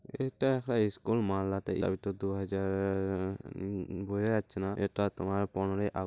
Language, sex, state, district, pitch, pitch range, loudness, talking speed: Bengali, male, West Bengal, Malda, 100 Hz, 95-105 Hz, -33 LUFS, 150 wpm